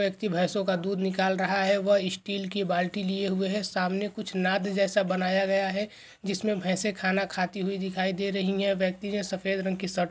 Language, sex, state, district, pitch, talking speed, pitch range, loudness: Hindi, male, West Bengal, Kolkata, 195 Hz, 220 wpm, 190-200 Hz, -28 LUFS